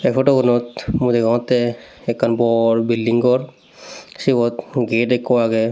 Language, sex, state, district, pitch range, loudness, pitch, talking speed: Chakma, male, Tripura, Dhalai, 115-125 Hz, -18 LUFS, 120 Hz, 125 wpm